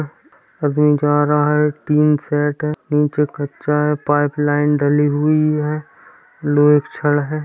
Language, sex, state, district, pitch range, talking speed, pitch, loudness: Hindi, male, Uttar Pradesh, Jyotiba Phule Nagar, 145-150 Hz, 170 wpm, 150 Hz, -17 LUFS